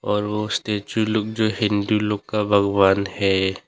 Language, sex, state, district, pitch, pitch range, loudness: Hindi, male, Arunachal Pradesh, Longding, 105 Hz, 100-105 Hz, -21 LUFS